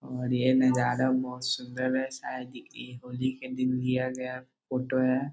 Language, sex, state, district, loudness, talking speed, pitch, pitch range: Hindi, male, Bihar, Muzaffarpur, -29 LUFS, 180 wpm, 130 Hz, 125-130 Hz